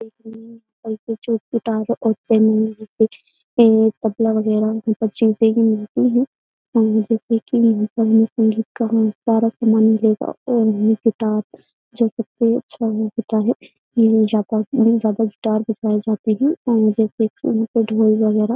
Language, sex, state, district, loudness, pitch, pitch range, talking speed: Hindi, female, Uttar Pradesh, Jyotiba Phule Nagar, -18 LUFS, 225 Hz, 220-230 Hz, 125 wpm